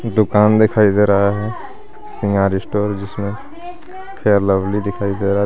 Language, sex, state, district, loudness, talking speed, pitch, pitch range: Hindi, male, Jharkhand, Garhwa, -16 LUFS, 145 wpm, 105 Hz, 100-115 Hz